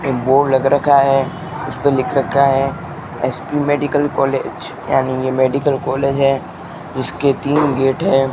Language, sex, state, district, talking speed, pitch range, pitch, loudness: Hindi, male, Rajasthan, Bikaner, 160 wpm, 135-145 Hz, 140 Hz, -16 LUFS